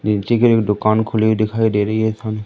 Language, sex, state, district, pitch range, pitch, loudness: Hindi, male, Madhya Pradesh, Umaria, 105-110 Hz, 110 Hz, -17 LUFS